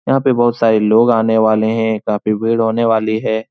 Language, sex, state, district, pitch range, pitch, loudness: Hindi, male, Bihar, Supaul, 110-115 Hz, 110 Hz, -14 LUFS